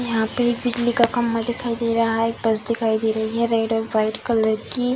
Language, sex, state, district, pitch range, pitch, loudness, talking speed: Hindi, female, Bihar, Darbhanga, 220-240 Hz, 230 Hz, -21 LUFS, 255 wpm